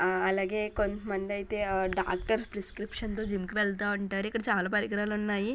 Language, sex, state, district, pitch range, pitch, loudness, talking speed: Telugu, female, Telangana, Nalgonda, 195-210 Hz, 205 Hz, -31 LUFS, 85 wpm